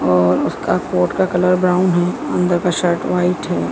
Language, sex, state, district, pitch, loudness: Hindi, female, Madhya Pradesh, Dhar, 175 Hz, -17 LUFS